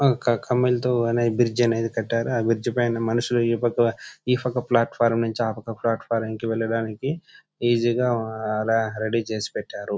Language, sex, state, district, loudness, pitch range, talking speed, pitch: Telugu, male, Andhra Pradesh, Chittoor, -23 LUFS, 115-120 Hz, 125 wpm, 115 Hz